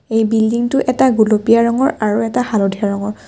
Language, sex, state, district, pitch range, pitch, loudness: Assamese, female, Assam, Kamrup Metropolitan, 215-245 Hz, 225 Hz, -15 LUFS